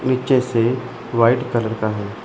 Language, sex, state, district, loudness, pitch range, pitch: Hindi, male, Chandigarh, Chandigarh, -19 LUFS, 115-125 Hz, 120 Hz